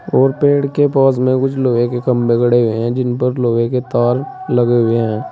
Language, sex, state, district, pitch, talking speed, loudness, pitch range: Hindi, male, Uttar Pradesh, Saharanpur, 125 Hz, 225 wpm, -15 LUFS, 120-135 Hz